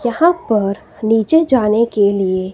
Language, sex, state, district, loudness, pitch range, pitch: Hindi, female, Himachal Pradesh, Shimla, -15 LUFS, 200-260 Hz, 220 Hz